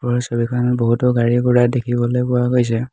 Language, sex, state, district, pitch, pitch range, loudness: Assamese, male, Assam, Hailakandi, 120 Hz, 120-125 Hz, -17 LUFS